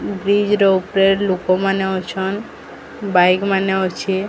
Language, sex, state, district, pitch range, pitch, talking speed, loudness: Odia, female, Odisha, Sambalpur, 190-200 Hz, 195 Hz, 125 wpm, -17 LUFS